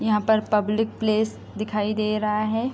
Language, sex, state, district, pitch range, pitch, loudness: Hindi, female, Uttar Pradesh, Gorakhpur, 210-220 Hz, 215 Hz, -23 LUFS